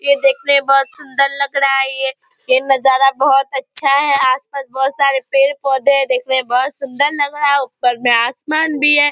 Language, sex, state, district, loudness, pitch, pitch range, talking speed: Hindi, female, Bihar, Purnia, -14 LUFS, 275 Hz, 265-285 Hz, 210 wpm